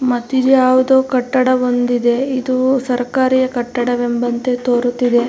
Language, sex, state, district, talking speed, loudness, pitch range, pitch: Kannada, female, Karnataka, Mysore, 125 wpm, -15 LUFS, 245-260 Hz, 250 Hz